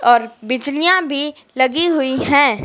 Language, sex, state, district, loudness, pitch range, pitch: Hindi, female, Madhya Pradesh, Dhar, -16 LUFS, 255-300 Hz, 285 Hz